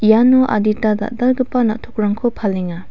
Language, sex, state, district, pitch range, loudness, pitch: Garo, female, Meghalaya, West Garo Hills, 210-245 Hz, -16 LUFS, 215 Hz